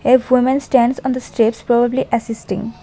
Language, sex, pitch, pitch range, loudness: English, female, 245 Hz, 230-255 Hz, -17 LUFS